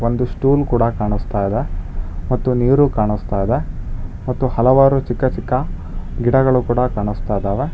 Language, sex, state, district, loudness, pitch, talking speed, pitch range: Kannada, male, Karnataka, Bangalore, -18 LUFS, 120 Hz, 125 wpm, 105-130 Hz